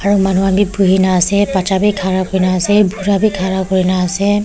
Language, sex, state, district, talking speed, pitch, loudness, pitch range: Nagamese, female, Nagaland, Kohima, 200 wpm, 190 Hz, -14 LUFS, 185-200 Hz